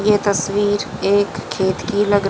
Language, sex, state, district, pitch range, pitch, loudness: Hindi, female, Haryana, Jhajjar, 195-205 Hz, 205 Hz, -18 LUFS